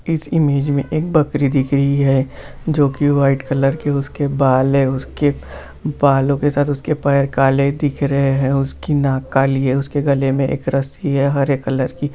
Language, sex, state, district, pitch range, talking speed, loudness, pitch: Hindi, male, Bihar, Jamui, 135-145 Hz, 195 wpm, -17 LUFS, 140 Hz